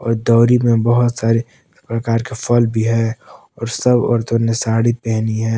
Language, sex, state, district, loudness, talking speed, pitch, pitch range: Hindi, male, Jharkhand, Palamu, -16 LUFS, 170 wpm, 115 Hz, 115-120 Hz